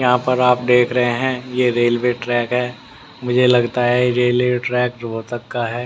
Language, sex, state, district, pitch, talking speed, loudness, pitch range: Hindi, male, Haryana, Rohtak, 125 Hz, 195 wpm, -17 LUFS, 120-125 Hz